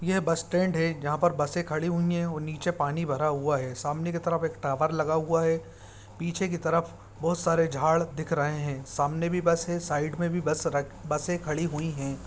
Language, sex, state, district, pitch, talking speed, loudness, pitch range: Hindi, male, Bihar, Saran, 160 Hz, 215 wpm, -28 LUFS, 145-170 Hz